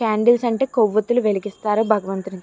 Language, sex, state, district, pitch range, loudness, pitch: Telugu, female, Andhra Pradesh, Chittoor, 210-235 Hz, -19 LUFS, 215 Hz